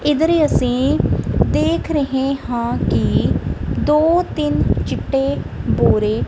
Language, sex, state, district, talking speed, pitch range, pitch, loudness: Punjabi, female, Punjab, Kapurthala, 105 wpm, 235-300 Hz, 270 Hz, -18 LUFS